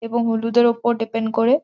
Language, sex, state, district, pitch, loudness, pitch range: Bengali, female, West Bengal, Jhargram, 230 Hz, -19 LUFS, 225-235 Hz